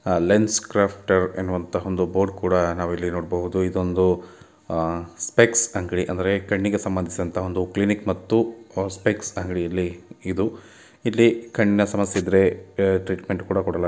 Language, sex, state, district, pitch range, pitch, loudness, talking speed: Kannada, male, Karnataka, Mysore, 90-100 Hz, 95 Hz, -23 LUFS, 125 wpm